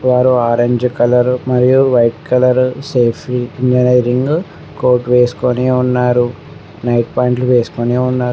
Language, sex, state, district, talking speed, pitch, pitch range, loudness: Telugu, male, Telangana, Mahabubabad, 80 wpm, 125 Hz, 120-125 Hz, -13 LUFS